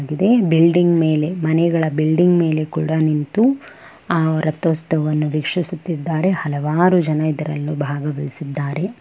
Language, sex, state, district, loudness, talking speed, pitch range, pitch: Kannada, female, Karnataka, Bellary, -18 LUFS, 95 wpm, 150-175 Hz, 160 Hz